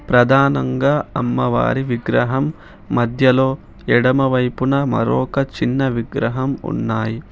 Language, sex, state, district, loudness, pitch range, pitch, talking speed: Telugu, male, Telangana, Hyderabad, -18 LUFS, 120-135 Hz, 130 Hz, 75 wpm